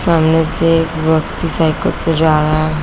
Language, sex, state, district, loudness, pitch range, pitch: Hindi, female, Uttar Pradesh, Varanasi, -14 LUFS, 155-165 Hz, 160 Hz